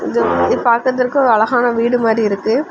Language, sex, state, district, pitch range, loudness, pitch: Tamil, female, Tamil Nadu, Kanyakumari, 225-255 Hz, -14 LUFS, 240 Hz